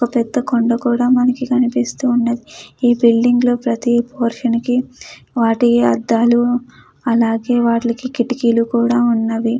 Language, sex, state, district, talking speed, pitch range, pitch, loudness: Telugu, female, Andhra Pradesh, Chittoor, 125 wpm, 235-245 Hz, 240 Hz, -16 LUFS